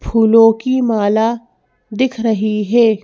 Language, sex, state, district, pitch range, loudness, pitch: Hindi, female, Madhya Pradesh, Bhopal, 215-235 Hz, -14 LUFS, 225 Hz